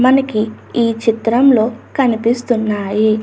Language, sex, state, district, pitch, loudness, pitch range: Telugu, female, Andhra Pradesh, Anantapur, 230 Hz, -15 LUFS, 220-245 Hz